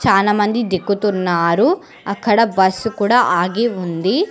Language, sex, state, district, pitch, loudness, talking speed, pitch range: Telugu, female, Telangana, Hyderabad, 205 Hz, -16 LUFS, 95 wpm, 190-230 Hz